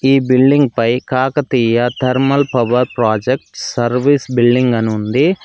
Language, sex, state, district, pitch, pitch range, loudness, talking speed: Telugu, male, Telangana, Mahabubabad, 125 Hz, 120-135 Hz, -14 LUFS, 120 wpm